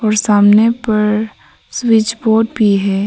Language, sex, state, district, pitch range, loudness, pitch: Hindi, female, Arunachal Pradesh, Papum Pare, 210-225 Hz, -13 LUFS, 215 Hz